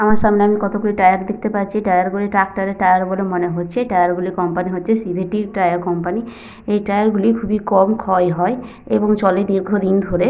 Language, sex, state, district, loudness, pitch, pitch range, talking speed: Bengali, female, Jharkhand, Sahebganj, -17 LUFS, 195 Hz, 185-210 Hz, 205 wpm